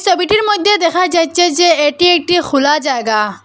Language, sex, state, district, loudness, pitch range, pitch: Bengali, female, Assam, Hailakandi, -12 LUFS, 295-360 Hz, 345 Hz